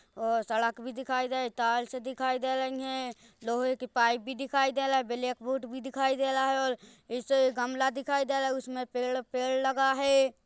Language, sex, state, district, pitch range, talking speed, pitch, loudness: Hindi, female, Chhattisgarh, Rajnandgaon, 245-265 Hz, 205 wpm, 260 Hz, -30 LUFS